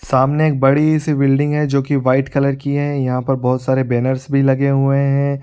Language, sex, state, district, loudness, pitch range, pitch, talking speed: Hindi, male, Bihar, Supaul, -16 LUFS, 130-140 Hz, 140 Hz, 220 wpm